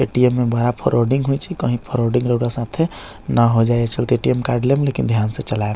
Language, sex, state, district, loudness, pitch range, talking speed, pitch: Bajjika, male, Bihar, Vaishali, -18 LUFS, 115-125 Hz, 210 wpm, 120 Hz